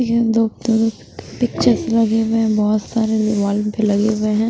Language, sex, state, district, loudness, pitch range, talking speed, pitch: Hindi, female, Bihar, West Champaran, -17 LUFS, 215-225 Hz, 175 wpm, 220 Hz